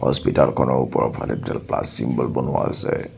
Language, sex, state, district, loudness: Assamese, male, Assam, Sonitpur, -21 LUFS